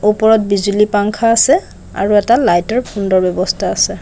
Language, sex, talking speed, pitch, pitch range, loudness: Assamese, female, 150 wpm, 205 Hz, 200-220 Hz, -13 LUFS